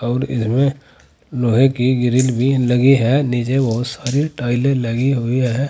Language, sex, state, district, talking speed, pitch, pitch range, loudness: Hindi, male, Uttar Pradesh, Saharanpur, 160 wpm, 130 Hz, 120-135 Hz, -17 LUFS